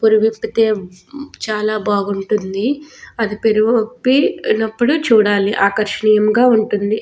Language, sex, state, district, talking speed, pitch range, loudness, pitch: Telugu, female, Telangana, Nalgonda, 70 wpm, 210-230 Hz, -16 LUFS, 215 Hz